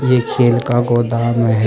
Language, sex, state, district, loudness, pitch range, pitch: Hindi, male, Uttar Pradesh, Shamli, -15 LUFS, 115-120 Hz, 120 Hz